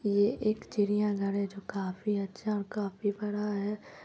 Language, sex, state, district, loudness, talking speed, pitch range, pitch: Hindi, female, Bihar, Lakhisarai, -32 LUFS, 190 wpm, 200-210 Hz, 205 Hz